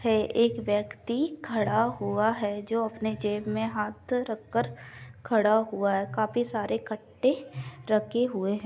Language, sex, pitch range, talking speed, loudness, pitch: Maithili, female, 205-230 Hz, 145 wpm, -28 LUFS, 215 Hz